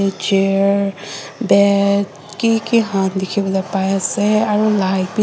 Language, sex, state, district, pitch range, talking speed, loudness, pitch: Nagamese, female, Nagaland, Dimapur, 195-210 Hz, 115 wpm, -16 LUFS, 200 Hz